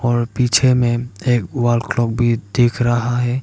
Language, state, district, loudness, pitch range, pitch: Hindi, Arunachal Pradesh, Papum Pare, -17 LUFS, 120-125 Hz, 120 Hz